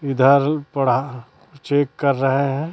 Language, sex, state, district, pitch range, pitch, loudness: Hindi, female, Chhattisgarh, Raipur, 135-145 Hz, 140 Hz, -19 LUFS